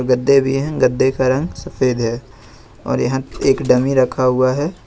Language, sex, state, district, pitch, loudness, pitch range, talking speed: Hindi, male, Jharkhand, Ranchi, 130 Hz, -17 LUFS, 125-135 Hz, 185 wpm